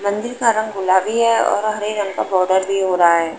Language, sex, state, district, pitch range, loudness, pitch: Hindi, female, Uttar Pradesh, Jalaun, 185-215 Hz, -17 LUFS, 200 Hz